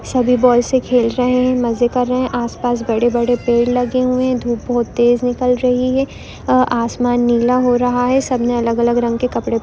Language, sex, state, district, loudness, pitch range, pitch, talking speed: Hindi, female, Chhattisgarh, Bilaspur, -16 LUFS, 240-250 Hz, 245 Hz, 220 wpm